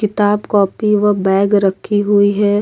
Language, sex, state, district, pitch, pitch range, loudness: Hindi, female, Bihar, Kishanganj, 205 Hz, 200-210 Hz, -14 LUFS